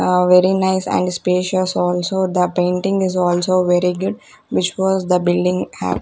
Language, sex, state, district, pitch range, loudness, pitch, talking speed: English, female, Punjab, Kapurthala, 180-190 Hz, -17 LUFS, 180 Hz, 150 wpm